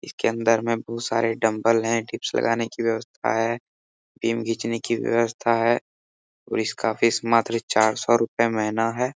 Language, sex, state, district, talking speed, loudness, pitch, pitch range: Hindi, male, Bihar, Saharsa, 170 wpm, -23 LUFS, 115 Hz, 110-115 Hz